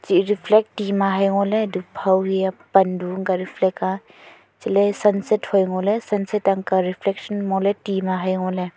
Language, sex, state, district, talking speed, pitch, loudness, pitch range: Wancho, female, Arunachal Pradesh, Longding, 185 wpm, 195 Hz, -21 LUFS, 185-205 Hz